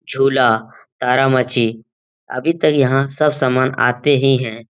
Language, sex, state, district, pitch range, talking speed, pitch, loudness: Hindi, male, Bihar, Jamui, 120-135 Hz, 130 wpm, 130 Hz, -16 LUFS